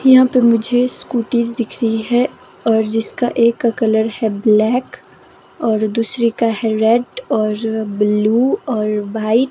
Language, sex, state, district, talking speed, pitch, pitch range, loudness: Hindi, female, Himachal Pradesh, Shimla, 145 wpm, 225 Hz, 220-240 Hz, -16 LUFS